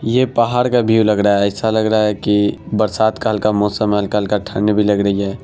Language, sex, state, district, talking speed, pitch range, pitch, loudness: Hindi, male, Bihar, Araria, 275 wpm, 105-110 Hz, 105 Hz, -16 LUFS